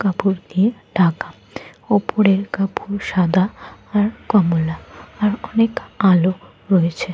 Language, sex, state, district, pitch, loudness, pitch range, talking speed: Bengali, female, Jharkhand, Jamtara, 195 Hz, -19 LUFS, 180-205 Hz, 100 wpm